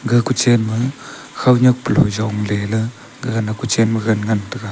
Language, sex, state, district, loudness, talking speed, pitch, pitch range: Wancho, male, Arunachal Pradesh, Longding, -17 LUFS, 140 wpm, 115 Hz, 110-125 Hz